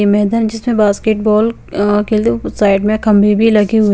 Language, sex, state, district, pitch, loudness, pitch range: Hindi, female, Chandigarh, Chandigarh, 210 Hz, -13 LUFS, 205-220 Hz